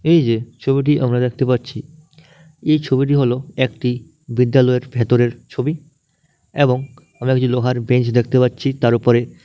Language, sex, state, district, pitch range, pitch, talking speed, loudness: Bengali, male, West Bengal, Malda, 125-150 Hz, 130 Hz, 135 wpm, -17 LUFS